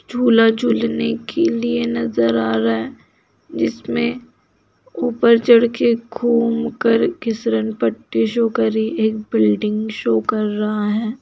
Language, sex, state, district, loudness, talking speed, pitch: Hindi, female, Bihar, Saharsa, -18 LUFS, 130 wpm, 210 Hz